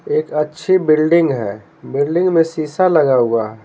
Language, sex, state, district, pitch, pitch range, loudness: Hindi, male, Bihar, Patna, 155 Hz, 120-170 Hz, -15 LUFS